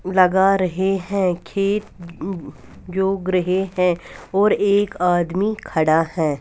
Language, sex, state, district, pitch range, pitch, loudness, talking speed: Hindi, female, Punjab, Fazilka, 175-195 Hz, 185 Hz, -20 LUFS, 110 wpm